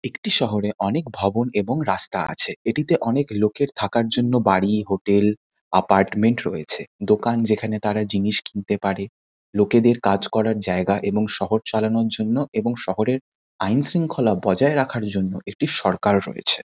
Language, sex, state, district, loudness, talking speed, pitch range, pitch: Bengali, male, West Bengal, Kolkata, -21 LUFS, 145 wpm, 100-120 Hz, 105 Hz